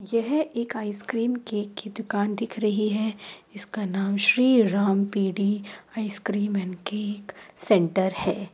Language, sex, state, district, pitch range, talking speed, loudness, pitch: Hindi, female, Uttar Pradesh, Jyotiba Phule Nagar, 200-220 Hz, 145 wpm, -25 LUFS, 205 Hz